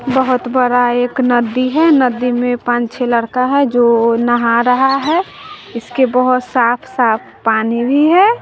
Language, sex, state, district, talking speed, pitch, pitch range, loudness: Hindi, female, Bihar, West Champaran, 155 wpm, 250 Hz, 240-260 Hz, -13 LUFS